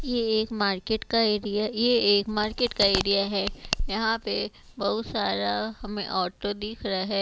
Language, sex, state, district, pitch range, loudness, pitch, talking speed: Hindi, female, Chhattisgarh, Raipur, 195-220 Hz, -26 LUFS, 205 Hz, 165 wpm